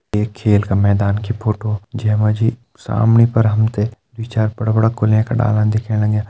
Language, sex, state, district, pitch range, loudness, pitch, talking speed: Hindi, male, Uttarakhand, Uttarkashi, 105-115 Hz, -17 LUFS, 110 Hz, 180 wpm